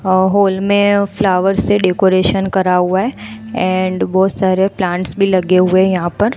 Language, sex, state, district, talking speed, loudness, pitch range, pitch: Hindi, female, Gujarat, Gandhinagar, 180 wpm, -14 LUFS, 185-200 Hz, 190 Hz